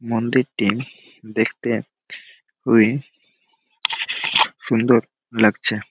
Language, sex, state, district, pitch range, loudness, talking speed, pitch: Bengali, male, West Bengal, Malda, 110-140 Hz, -20 LUFS, 60 wpm, 120 Hz